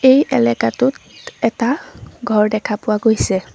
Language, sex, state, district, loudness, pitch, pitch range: Assamese, female, Assam, Sonitpur, -17 LUFS, 225 Hz, 210-260 Hz